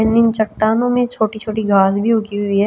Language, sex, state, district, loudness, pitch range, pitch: Hindi, female, Chhattisgarh, Raipur, -16 LUFS, 205-230 Hz, 220 Hz